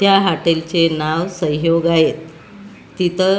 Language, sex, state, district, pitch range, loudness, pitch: Marathi, female, Maharashtra, Gondia, 160-190 Hz, -16 LUFS, 165 Hz